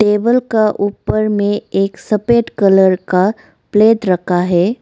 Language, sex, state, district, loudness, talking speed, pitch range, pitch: Hindi, female, Arunachal Pradesh, Lower Dibang Valley, -14 LUFS, 135 wpm, 190-215 Hz, 205 Hz